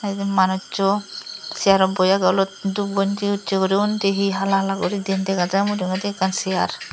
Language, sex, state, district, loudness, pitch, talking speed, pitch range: Chakma, female, Tripura, Dhalai, -20 LUFS, 195 Hz, 180 wpm, 190-200 Hz